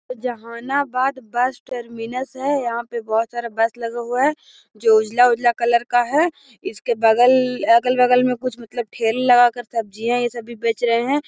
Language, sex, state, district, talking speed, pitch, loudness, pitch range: Magahi, female, Bihar, Gaya, 195 wpm, 240 Hz, -19 LUFS, 235-255 Hz